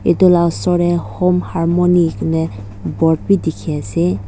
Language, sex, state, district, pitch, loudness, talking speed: Nagamese, female, Nagaland, Dimapur, 165 Hz, -15 LUFS, 155 wpm